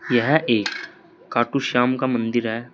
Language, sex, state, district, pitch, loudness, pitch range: Hindi, male, Uttar Pradesh, Saharanpur, 120 Hz, -21 LUFS, 120-130 Hz